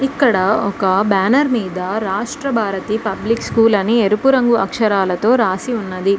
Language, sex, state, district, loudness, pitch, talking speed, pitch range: Telugu, female, Telangana, Mahabubabad, -16 LUFS, 220 Hz, 135 wpm, 195-235 Hz